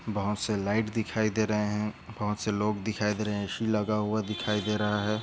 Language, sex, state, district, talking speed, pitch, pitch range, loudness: Hindi, male, Maharashtra, Aurangabad, 240 wpm, 105 Hz, 105-110 Hz, -29 LUFS